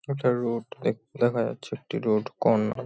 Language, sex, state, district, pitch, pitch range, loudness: Bengali, male, West Bengal, North 24 Parganas, 120 Hz, 110-125 Hz, -27 LUFS